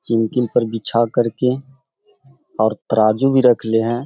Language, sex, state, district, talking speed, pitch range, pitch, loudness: Hindi, male, Bihar, Gaya, 150 wpm, 115-135 Hz, 120 Hz, -17 LUFS